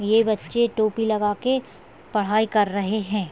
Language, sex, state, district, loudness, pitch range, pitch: Hindi, female, Maharashtra, Sindhudurg, -22 LUFS, 205-225 Hz, 215 Hz